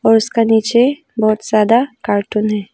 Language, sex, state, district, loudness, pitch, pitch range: Hindi, female, Arunachal Pradesh, Longding, -15 LUFS, 220 Hz, 215-235 Hz